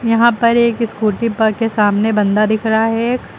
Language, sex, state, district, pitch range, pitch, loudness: Hindi, female, Uttar Pradesh, Lucknow, 215-230 Hz, 225 Hz, -15 LUFS